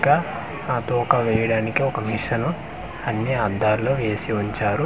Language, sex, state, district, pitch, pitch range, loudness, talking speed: Telugu, male, Andhra Pradesh, Manyam, 110 Hz, 105-120 Hz, -22 LUFS, 125 wpm